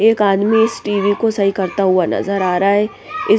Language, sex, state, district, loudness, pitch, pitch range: Hindi, female, Punjab, Pathankot, -16 LUFS, 205 Hz, 195-225 Hz